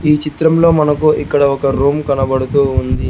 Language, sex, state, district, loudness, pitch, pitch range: Telugu, male, Telangana, Hyderabad, -13 LUFS, 140 Hz, 135-150 Hz